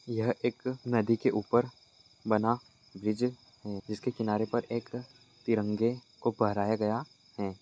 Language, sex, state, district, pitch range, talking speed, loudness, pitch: Hindi, male, Uttar Pradesh, Etah, 105-120 Hz, 135 wpm, -32 LUFS, 115 Hz